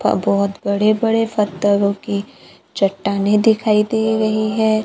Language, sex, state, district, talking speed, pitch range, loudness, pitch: Hindi, female, Maharashtra, Gondia, 135 wpm, 200-220 Hz, -17 LUFS, 210 Hz